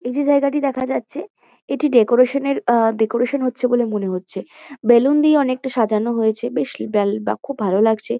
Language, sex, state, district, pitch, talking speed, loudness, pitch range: Bengali, female, West Bengal, Kolkata, 245 Hz, 185 wpm, -18 LUFS, 220-275 Hz